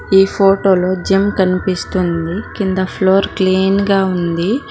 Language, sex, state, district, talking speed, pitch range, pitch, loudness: Telugu, female, Telangana, Mahabubabad, 115 wpm, 185-195 Hz, 190 Hz, -15 LUFS